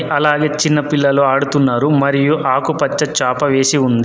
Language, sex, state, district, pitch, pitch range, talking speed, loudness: Telugu, male, Telangana, Adilabad, 140 Hz, 135-150 Hz, 135 wpm, -14 LUFS